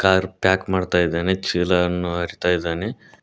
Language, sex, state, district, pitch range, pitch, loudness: Kannada, male, Karnataka, Koppal, 85-95 Hz, 90 Hz, -21 LUFS